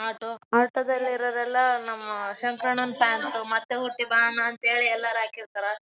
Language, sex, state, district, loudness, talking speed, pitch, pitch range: Kannada, female, Karnataka, Raichur, -25 LUFS, 115 wpm, 235 Hz, 225-245 Hz